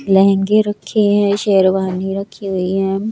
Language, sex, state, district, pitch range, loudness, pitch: Hindi, male, Chandigarh, Chandigarh, 190-205 Hz, -15 LUFS, 195 Hz